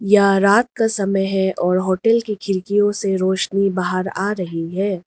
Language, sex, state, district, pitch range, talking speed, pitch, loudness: Hindi, female, Arunachal Pradesh, Lower Dibang Valley, 185-205 Hz, 175 wpm, 195 Hz, -18 LUFS